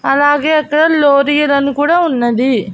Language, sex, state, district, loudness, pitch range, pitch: Telugu, female, Andhra Pradesh, Annamaya, -12 LUFS, 275-305 Hz, 290 Hz